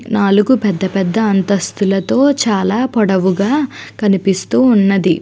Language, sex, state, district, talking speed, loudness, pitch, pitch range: Telugu, female, Andhra Pradesh, Chittoor, 80 wpm, -14 LUFS, 200 Hz, 195-230 Hz